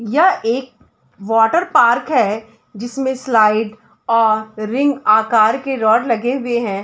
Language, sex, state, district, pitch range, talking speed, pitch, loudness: Hindi, female, Chhattisgarh, Bilaspur, 220-260 Hz, 130 wpm, 230 Hz, -15 LUFS